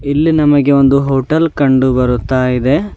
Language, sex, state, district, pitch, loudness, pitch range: Kannada, male, Karnataka, Bidar, 140 Hz, -12 LUFS, 130-145 Hz